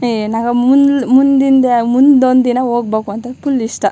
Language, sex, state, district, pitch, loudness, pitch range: Kannada, female, Karnataka, Chamarajanagar, 250 Hz, -12 LUFS, 235-270 Hz